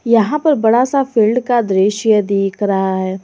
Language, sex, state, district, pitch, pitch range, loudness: Hindi, female, Jharkhand, Garhwa, 220 Hz, 195-245 Hz, -14 LUFS